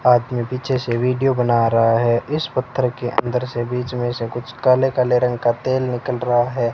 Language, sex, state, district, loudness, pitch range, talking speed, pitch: Hindi, male, Rajasthan, Bikaner, -19 LUFS, 120-130 Hz, 215 wpm, 125 Hz